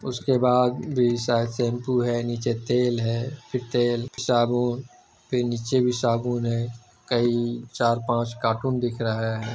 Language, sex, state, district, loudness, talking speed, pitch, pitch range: Hindi, male, Bihar, Jamui, -24 LUFS, 155 wpm, 120 Hz, 120-125 Hz